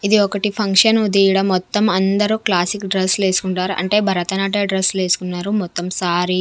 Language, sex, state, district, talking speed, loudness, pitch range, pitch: Telugu, female, Andhra Pradesh, Manyam, 170 wpm, -17 LUFS, 185-205 Hz, 195 Hz